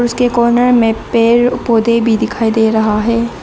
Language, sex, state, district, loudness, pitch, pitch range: Hindi, female, Arunachal Pradesh, Lower Dibang Valley, -12 LUFS, 230 Hz, 225-240 Hz